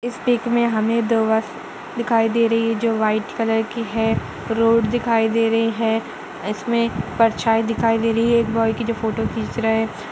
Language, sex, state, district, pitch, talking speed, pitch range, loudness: Hindi, female, Uttar Pradesh, Budaun, 225 Hz, 195 wpm, 225-230 Hz, -20 LUFS